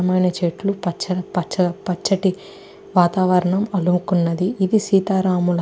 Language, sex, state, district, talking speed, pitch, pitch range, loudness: Telugu, female, Andhra Pradesh, Chittoor, 105 wpm, 185 Hz, 180-190 Hz, -19 LUFS